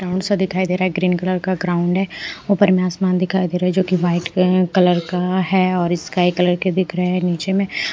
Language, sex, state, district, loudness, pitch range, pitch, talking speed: Hindi, female, Punjab, Pathankot, -18 LUFS, 180-185 Hz, 185 Hz, 265 wpm